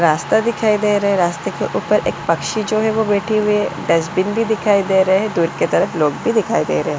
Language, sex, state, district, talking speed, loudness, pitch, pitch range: Hindi, female, Delhi, New Delhi, 250 wpm, -17 LUFS, 205 Hz, 175-215 Hz